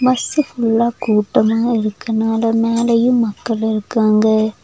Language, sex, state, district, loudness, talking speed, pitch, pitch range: Tamil, female, Tamil Nadu, Nilgiris, -16 LUFS, 90 wpm, 225 Hz, 220-235 Hz